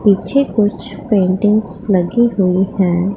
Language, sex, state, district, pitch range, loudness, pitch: Hindi, female, Punjab, Pathankot, 190-210 Hz, -15 LUFS, 200 Hz